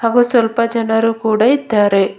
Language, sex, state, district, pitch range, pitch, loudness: Kannada, female, Karnataka, Bidar, 220-235 Hz, 230 Hz, -14 LUFS